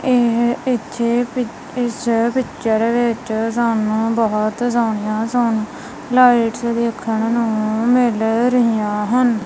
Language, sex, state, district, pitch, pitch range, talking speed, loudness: Punjabi, female, Punjab, Kapurthala, 235 Hz, 220-240 Hz, 95 wpm, -18 LUFS